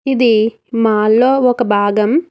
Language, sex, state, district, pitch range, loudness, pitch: Telugu, female, Telangana, Hyderabad, 215-255 Hz, -13 LUFS, 230 Hz